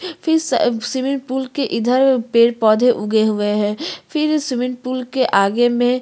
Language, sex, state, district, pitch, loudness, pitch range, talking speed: Hindi, female, Chhattisgarh, Korba, 250 Hz, -17 LUFS, 230-265 Hz, 170 wpm